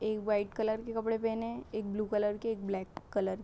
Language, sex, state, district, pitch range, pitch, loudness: Hindi, female, Uttar Pradesh, Hamirpur, 205-225 Hz, 215 Hz, -34 LUFS